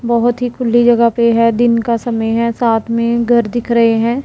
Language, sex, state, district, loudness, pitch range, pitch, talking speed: Hindi, female, Punjab, Pathankot, -13 LUFS, 230-240 Hz, 235 Hz, 225 wpm